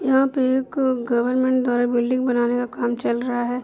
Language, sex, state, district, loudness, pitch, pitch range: Hindi, female, Jharkhand, Jamtara, -21 LUFS, 245 Hz, 240-260 Hz